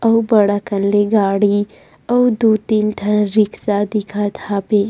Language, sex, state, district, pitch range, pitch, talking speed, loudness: Chhattisgarhi, female, Chhattisgarh, Rajnandgaon, 205-215 Hz, 210 Hz, 145 wpm, -16 LUFS